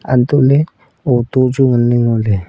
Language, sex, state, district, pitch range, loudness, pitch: Wancho, male, Arunachal Pradesh, Longding, 120-135 Hz, -13 LUFS, 125 Hz